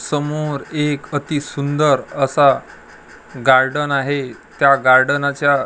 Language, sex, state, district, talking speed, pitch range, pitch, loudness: Marathi, male, Maharashtra, Gondia, 105 wpm, 135-150 Hz, 145 Hz, -17 LUFS